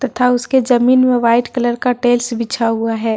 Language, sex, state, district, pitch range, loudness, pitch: Hindi, female, Jharkhand, Deoghar, 230-250 Hz, -15 LUFS, 245 Hz